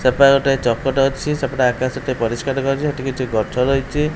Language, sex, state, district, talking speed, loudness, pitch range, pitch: Odia, male, Odisha, Khordha, 185 wpm, -18 LUFS, 130-135 Hz, 135 Hz